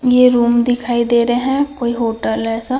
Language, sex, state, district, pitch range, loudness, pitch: Hindi, female, Chhattisgarh, Raipur, 235-250 Hz, -15 LUFS, 240 Hz